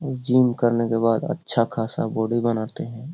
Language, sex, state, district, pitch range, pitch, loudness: Hindi, male, Bihar, Lakhisarai, 115-135 Hz, 120 Hz, -22 LUFS